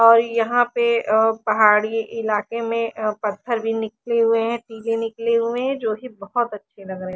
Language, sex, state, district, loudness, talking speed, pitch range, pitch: Hindi, female, Haryana, Charkhi Dadri, -21 LUFS, 190 wpm, 215-235 Hz, 225 Hz